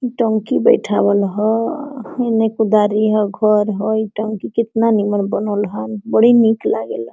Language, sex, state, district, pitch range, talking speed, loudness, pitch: Hindi, female, Jharkhand, Sahebganj, 205-225 Hz, 145 wpm, -16 LUFS, 215 Hz